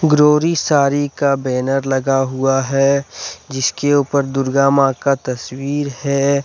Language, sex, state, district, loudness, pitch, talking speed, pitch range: Hindi, male, Jharkhand, Deoghar, -16 LUFS, 140 Hz, 130 wpm, 135-140 Hz